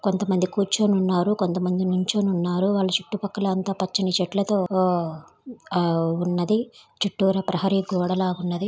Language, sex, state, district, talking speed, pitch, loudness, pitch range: Telugu, female, Andhra Pradesh, Guntur, 105 wpm, 185 Hz, -23 LUFS, 180-200 Hz